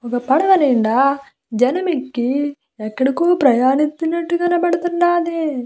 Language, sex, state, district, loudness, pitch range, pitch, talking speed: Telugu, female, Andhra Pradesh, Visakhapatnam, -17 LUFS, 255-345 Hz, 285 Hz, 85 wpm